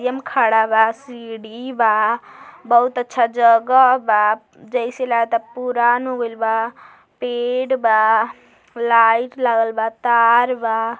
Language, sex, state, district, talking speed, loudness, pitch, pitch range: Bhojpuri, female, Uttar Pradesh, Gorakhpur, 125 wpm, -17 LUFS, 235 Hz, 225-245 Hz